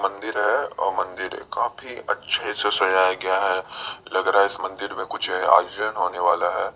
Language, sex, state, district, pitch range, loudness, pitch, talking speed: Hindi, male, Bihar, Madhepura, 95-100 Hz, -22 LUFS, 95 Hz, 185 wpm